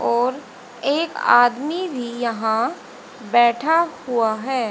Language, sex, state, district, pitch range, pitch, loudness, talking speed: Hindi, female, Haryana, Charkhi Dadri, 235-285 Hz, 245 Hz, -20 LUFS, 100 wpm